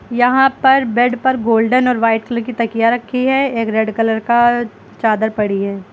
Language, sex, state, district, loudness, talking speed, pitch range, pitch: Hindi, female, Uttar Pradesh, Lucknow, -15 LUFS, 190 wpm, 225-250 Hz, 235 Hz